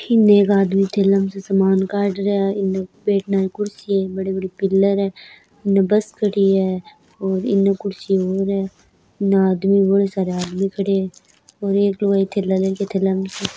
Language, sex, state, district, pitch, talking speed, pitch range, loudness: Hindi, female, Rajasthan, Churu, 195 Hz, 195 wpm, 190-200 Hz, -19 LUFS